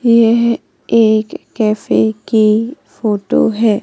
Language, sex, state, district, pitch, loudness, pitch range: Hindi, female, Madhya Pradesh, Katni, 220 Hz, -14 LUFS, 210-230 Hz